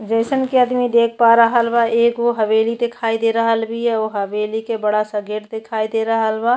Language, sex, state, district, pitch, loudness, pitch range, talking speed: Bhojpuri, female, Uttar Pradesh, Ghazipur, 225 Hz, -17 LUFS, 220-235 Hz, 210 wpm